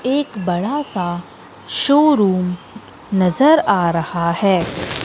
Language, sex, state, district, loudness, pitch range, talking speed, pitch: Hindi, female, Madhya Pradesh, Katni, -16 LUFS, 175-275 Hz, 95 wpm, 190 Hz